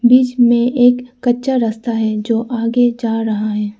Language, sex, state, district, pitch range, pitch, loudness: Hindi, female, Arunachal Pradesh, Lower Dibang Valley, 225-245 Hz, 235 Hz, -15 LUFS